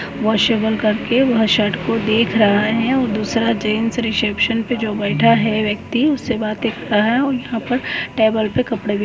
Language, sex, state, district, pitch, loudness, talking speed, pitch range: Hindi, male, West Bengal, Paschim Medinipur, 225 Hz, -17 LUFS, 200 wpm, 215-235 Hz